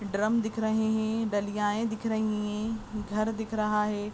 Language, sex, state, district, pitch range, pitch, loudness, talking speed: Hindi, female, Goa, North and South Goa, 210-220 Hz, 215 Hz, -29 LUFS, 175 wpm